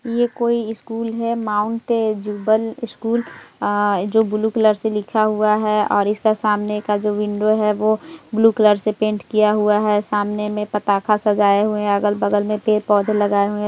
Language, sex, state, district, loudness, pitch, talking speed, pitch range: Hindi, female, Bihar, Bhagalpur, -18 LUFS, 210 Hz, 165 wpm, 210-220 Hz